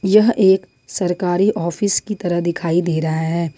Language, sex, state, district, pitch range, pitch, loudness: Hindi, female, Jharkhand, Ranchi, 165-195 Hz, 175 Hz, -18 LUFS